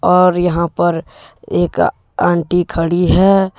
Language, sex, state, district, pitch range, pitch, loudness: Hindi, male, Jharkhand, Deoghar, 170-180 Hz, 175 Hz, -15 LUFS